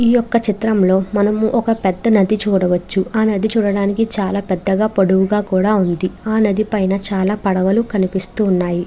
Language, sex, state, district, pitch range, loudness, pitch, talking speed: Telugu, female, Andhra Pradesh, Chittoor, 190-215 Hz, -16 LUFS, 200 Hz, 140 wpm